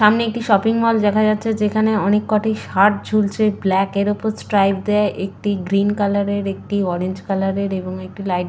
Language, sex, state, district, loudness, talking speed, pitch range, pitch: Bengali, female, West Bengal, Purulia, -18 LUFS, 200 wpm, 195-215 Hz, 205 Hz